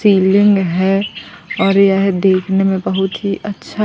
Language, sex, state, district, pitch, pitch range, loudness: Hindi, female, Madhya Pradesh, Katni, 195 Hz, 190-200 Hz, -14 LUFS